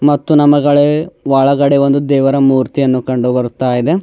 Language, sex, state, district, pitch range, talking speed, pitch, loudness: Kannada, male, Karnataka, Bidar, 130-145 Hz, 135 wpm, 140 Hz, -12 LUFS